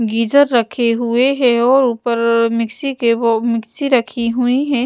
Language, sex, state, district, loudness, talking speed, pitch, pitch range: Hindi, female, Punjab, Pathankot, -15 LUFS, 160 wpm, 235 Hz, 230-255 Hz